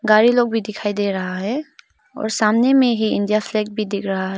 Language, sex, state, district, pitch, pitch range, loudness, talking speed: Hindi, female, Arunachal Pradesh, Papum Pare, 215 Hz, 205-235 Hz, -19 LUFS, 235 wpm